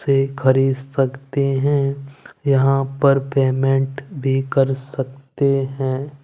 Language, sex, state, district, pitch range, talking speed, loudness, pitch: Hindi, male, Punjab, Kapurthala, 135-140 Hz, 105 wpm, -19 LUFS, 135 Hz